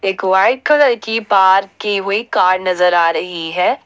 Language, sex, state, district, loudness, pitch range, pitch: Hindi, female, Jharkhand, Ranchi, -14 LUFS, 180-210 Hz, 190 Hz